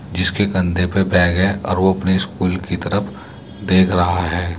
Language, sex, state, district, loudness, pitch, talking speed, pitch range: Hindi, male, Uttar Pradesh, Muzaffarnagar, -17 LUFS, 95 Hz, 185 wpm, 90-95 Hz